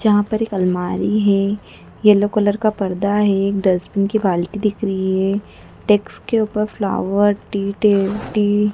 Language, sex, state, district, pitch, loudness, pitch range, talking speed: Hindi, female, Madhya Pradesh, Dhar, 205 Hz, -18 LUFS, 195-210 Hz, 145 wpm